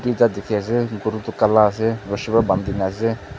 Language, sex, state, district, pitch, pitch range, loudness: Nagamese, male, Nagaland, Dimapur, 110 Hz, 100-115 Hz, -20 LUFS